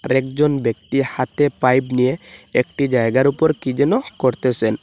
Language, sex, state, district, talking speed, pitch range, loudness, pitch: Bengali, male, Assam, Hailakandi, 135 wpm, 125-145 Hz, -18 LUFS, 130 Hz